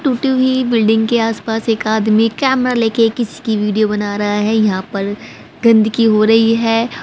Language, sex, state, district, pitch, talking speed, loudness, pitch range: Hindi, female, Haryana, Rohtak, 225 Hz, 190 wpm, -14 LUFS, 215-235 Hz